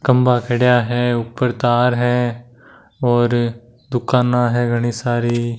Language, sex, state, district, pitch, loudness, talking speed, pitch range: Marwari, male, Rajasthan, Nagaur, 120 Hz, -17 LUFS, 120 wpm, 120-125 Hz